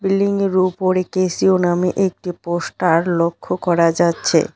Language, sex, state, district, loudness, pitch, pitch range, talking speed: Bengali, female, West Bengal, Cooch Behar, -17 LUFS, 180 Hz, 170-185 Hz, 130 wpm